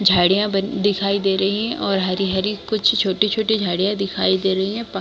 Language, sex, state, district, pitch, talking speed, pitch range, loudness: Hindi, female, Chhattisgarh, Bilaspur, 195 Hz, 215 wpm, 190-210 Hz, -19 LUFS